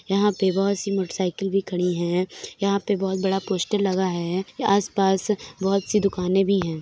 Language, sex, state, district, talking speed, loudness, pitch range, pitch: Hindi, female, Uttar Pradesh, Hamirpur, 185 wpm, -23 LUFS, 185-200 Hz, 195 Hz